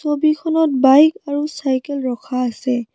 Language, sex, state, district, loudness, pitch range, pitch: Assamese, female, Assam, Kamrup Metropolitan, -17 LUFS, 255-305 Hz, 285 Hz